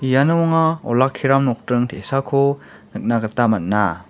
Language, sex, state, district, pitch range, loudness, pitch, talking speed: Garo, male, Meghalaya, West Garo Hills, 120-140 Hz, -18 LUFS, 135 Hz, 115 wpm